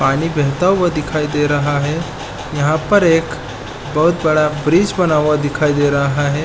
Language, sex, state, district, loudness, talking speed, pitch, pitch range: Hindi, male, Chhattisgarh, Balrampur, -16 LUFS, 175 wpm, 150 Hz, 145-160 Hz